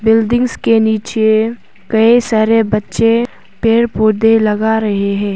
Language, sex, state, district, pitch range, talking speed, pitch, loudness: Hindi, female, Arunachal Pradesh, Papum Pare, 215-230 Hz, 110 wpm, 220 Hz, -13 LUFS